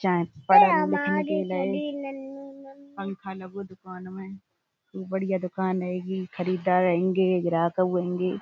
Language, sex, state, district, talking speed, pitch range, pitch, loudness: Hindi, female, Uttar Pradesh, Budaun, 120 wpm, 180-195 Hz, 185 Hz, -25 LUFS